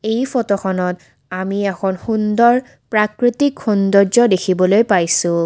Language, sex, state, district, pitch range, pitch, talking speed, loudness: Assamese, female, Assam, Kamrup Metropolitan, 185-230 Hz, 200 Hz, 100 wpm, -16 LUFS